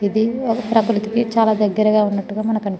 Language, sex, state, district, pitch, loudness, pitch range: Telugu, female, Telangana, Nalgonda, 220 Hz, -18 LUFS, 210-225 Hz